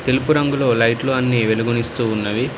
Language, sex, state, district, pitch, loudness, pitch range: Telugu, male, Telangana, Hyderabad, 120 Hz, -18 LUFS, 115-130 Hz